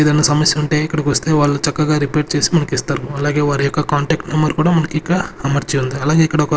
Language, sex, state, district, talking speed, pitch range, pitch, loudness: Telugu, male, Andhra Pradesh, Sri Satya Sai, 200 wpm, 145-155 Hz, 150 Hz, -16 LUFS